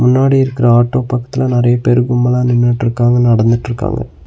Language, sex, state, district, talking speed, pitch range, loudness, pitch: Tamil, male, Tamil Nadu, Nilgiris, 125 wpm, 120-125 Hz, -13 LUFS, 120 Hz